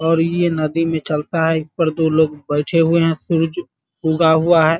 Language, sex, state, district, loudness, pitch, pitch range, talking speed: Hindi, male, Bihar, Muzaffarpur, -17 LUFS, 160 Hz, 160-165 Hz, 240 wpm